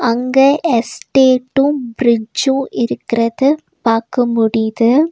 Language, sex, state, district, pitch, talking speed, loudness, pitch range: Tamil, female, Tamil Nadu, Nilgiris, 245 Hz, 70 wpm, -15 LUFS, 230-270 Hz